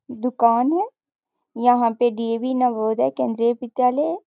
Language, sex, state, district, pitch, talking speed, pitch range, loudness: Hindi, female, Bihar, Sitamarhi, 245 Hz, 125 wpm, 230-260 Hz, -21 LUFS